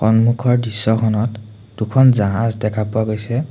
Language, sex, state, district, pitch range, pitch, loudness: Assamese, male, Assam, Sonitpur, 110-115 Hz, 110 Hz, -17 LUFS